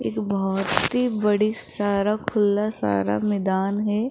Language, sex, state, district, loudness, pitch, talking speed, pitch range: Hindi, female, Rajasthan, Jaipur, -22 LUFS, 205 Hz, 130 wpm, 195-210 Hz